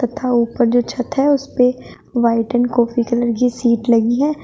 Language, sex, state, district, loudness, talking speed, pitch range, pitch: Hindi, female, Uttar Pradesh, Shamli, -17 LUFS, 190 wpm, 235-250 Hz, 245 Hz